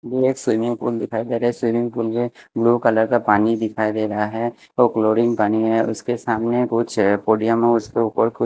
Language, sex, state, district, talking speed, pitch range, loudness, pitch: Hindi, male, Maharashtra, Mumbai Suburban, 190 wpm, 110-120 Hz, -20 LUFS, 115 Hz